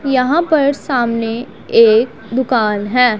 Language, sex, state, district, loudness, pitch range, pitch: Hindi, female, Punjab, Pathankot, -14 LUFS, 225-265 Hz, 245 Hz